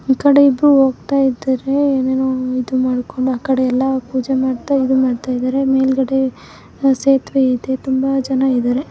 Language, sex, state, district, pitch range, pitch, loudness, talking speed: Kannada, female, Karnataka, Mysore, 255-270 Hz, 265 Hz, -16 LUFS, 155 wpm